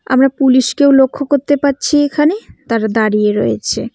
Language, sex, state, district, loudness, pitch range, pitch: Bengali, female, West Bengal, Cooch Behar, -13 LUFS, 230-285 Hz, 275 Hz